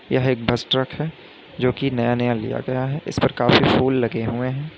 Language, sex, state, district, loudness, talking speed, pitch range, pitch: Hindi, male, Uttar Pradesh, Lalitpur, -21 LUFS, 240 wpm, 120-135 Hz, 130 Hz